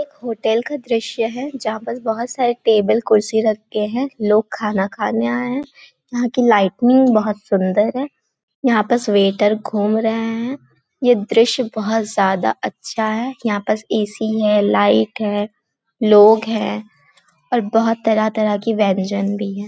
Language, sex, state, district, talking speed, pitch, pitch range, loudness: Hindi, female, Chhattisgarh, Balrampur, 165 wpm, 220 Hz, 210-240 Hz, -17 LUFS